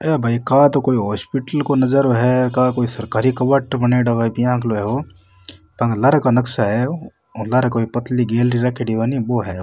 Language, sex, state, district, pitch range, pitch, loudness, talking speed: Rajasthani, male, Rajasthan, Nagaur, 115-130 Hz, 125 Hz, -17 LUFS, 185 wpm